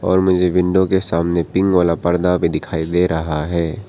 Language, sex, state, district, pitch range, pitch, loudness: Hindi, male, Arunachal Pradesh, Papum Pare, 85-90 Hz, 90 Hz, -17 LUFS